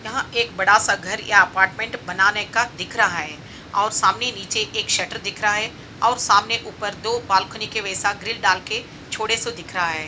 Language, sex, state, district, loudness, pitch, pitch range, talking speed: Hindi, female, Bihar, Gopalganj, -20 LUFS, 210 Hz, 190-230 Hz, 210 wpm